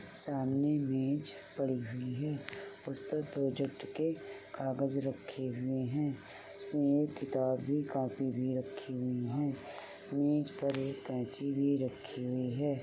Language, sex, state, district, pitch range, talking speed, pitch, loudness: Hindi, male, Uttar Pradesh, Jalaun, 130-145 Hz, 130 wpm, 135 Hz, -36 LUFS